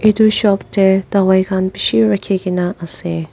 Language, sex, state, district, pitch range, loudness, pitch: Nagamese, female, Nagaland, Dimapur, 170-200 Hz, -15 LUFS, 190 Hz